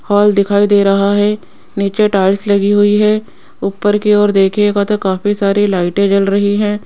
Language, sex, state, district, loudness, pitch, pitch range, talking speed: Hindi, female, Rajasthan, Jaipur, -13 LUFS, 205 Hz, 200-205 Hz, 185 wpm